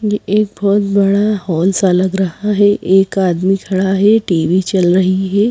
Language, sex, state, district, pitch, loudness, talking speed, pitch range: Hindi, female, Madhya Pradesh, Bhopal, 195 Hz, -13 LUFS, 185 wpm, 185-205 Hz